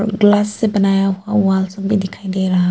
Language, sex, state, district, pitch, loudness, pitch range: Hindi, female, Arunachal Pradesh, Papum Pare, 195 Hz, -16 LUFS, 190-205 Hz